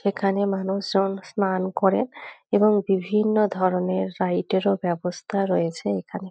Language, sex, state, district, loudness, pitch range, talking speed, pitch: Bengali, female, West Bengal, North 24 Parganas, -23 LUFS, 180-200 Hz, 105 wpm, 195 Hz